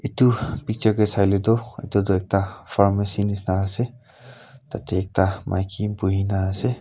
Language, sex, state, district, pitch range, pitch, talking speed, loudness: Nagamese, male, Nagaland, Kohima, 95-120 Hz, 100 Hz, 130 wpm, -22 LUFS